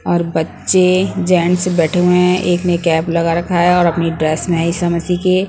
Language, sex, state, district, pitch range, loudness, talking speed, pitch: Hindi, female, Punjab, Pathankot, 170-180 Hz, -14 LUFS, 195 wpm, 175 Hz